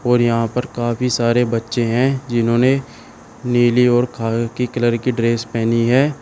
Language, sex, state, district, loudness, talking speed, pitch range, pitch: Hindi, male, Uttar Pradesh, Shamli, -17 LUFS, 155 wpm, 115-125 Hz, 120 Hz